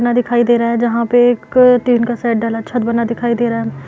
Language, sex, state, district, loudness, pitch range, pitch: Hindi, female, Uttar Pradesh, Varanasi, -14 LUFS, 235-245 Hz, 235 Hz